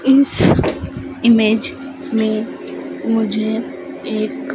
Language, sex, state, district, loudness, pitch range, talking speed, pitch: Hindi, female, Madhya Pradesh, Dhar, -17 LUFS, 220-270 Hz, 65 wpm, 225 Hz